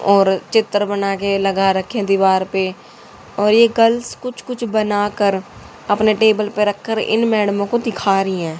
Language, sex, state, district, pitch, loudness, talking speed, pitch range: Hindi, female, Haryana, Charkhi Dadri, 205 Hz, -17 LUFS, 160 wpm, 195-220 Hz